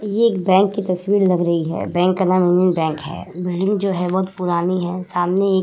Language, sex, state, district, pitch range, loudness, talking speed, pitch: Hindi, female, Uttar Pradesh, Hamirpur, 175-190 Hz, -18 LUFS, 245 wpm, 185 Hz